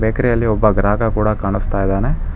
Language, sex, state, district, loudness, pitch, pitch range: Kannada, male, Karnataka, Bangalore, -17 LUFS, 105 Hz, 100-110 Hz